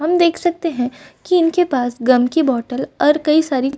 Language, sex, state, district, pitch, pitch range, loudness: Hindi, female, Uttar Pradesh, Varanasi, 295 Hz, 255-335 Hz, -17 LUFS